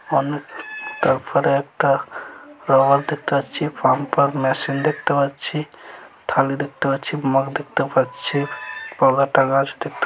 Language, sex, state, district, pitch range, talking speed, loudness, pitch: Bengali, male, West Bengal, Dakshin Dinajpur, 135-150 Hz, 120 wpm, -20 LUFS, 140 Hz